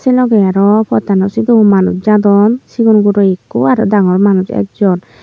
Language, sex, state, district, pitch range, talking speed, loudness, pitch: Chakma, female, Tripura, Unakoti, 190-220 Hz, 160 wpm, -10 LUFS, 205 Hz